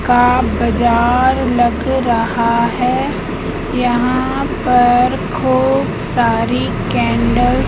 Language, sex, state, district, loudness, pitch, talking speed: Hindi, female, Madhya Pradesh, Katni, -15 LUFS, 240 Hz, 85 wpm